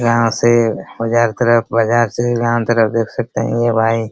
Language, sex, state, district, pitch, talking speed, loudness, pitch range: Hindi, male, Bihar, Araria, 115 Hz, 205 wpm, -15 LUFS, 115-120 Hz